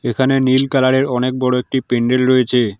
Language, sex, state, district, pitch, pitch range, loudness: Bengali, male, West Bengal, Alipurduar, 130 Hz, 125-130 Hz, -15 LUFS